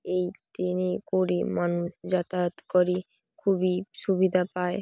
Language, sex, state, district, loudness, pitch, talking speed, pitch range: Bengali, female, West Bengal, Dakshin Dinajpur, -27 LUFS, 180 Hz, 125 wpm, 180-185 Hz